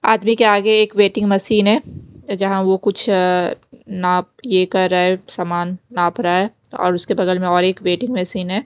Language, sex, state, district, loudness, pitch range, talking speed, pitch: Hindi, female, Bihar, West Champaran, -17 LUFS, 180-210 Hz, 195 wpm, 190 Hz